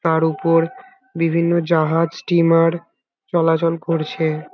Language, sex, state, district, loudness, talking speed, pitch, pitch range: Bengali, male, West Bengal, Kolkata, -18 LUFS, 90 wpm, 165 Hz, 165-170 Hz